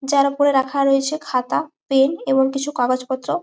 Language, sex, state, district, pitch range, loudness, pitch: Bengali, female, West Bengal, Malda, 265-285 Hz, -19 LUFS, 275 Hz